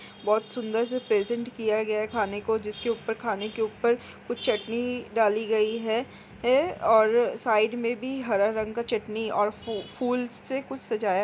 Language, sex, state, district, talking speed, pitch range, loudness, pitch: Hindi, female, Chhattisgarh, Korba, 170 wpm, 215-240 Hz, -27 LUFS, 225 Hz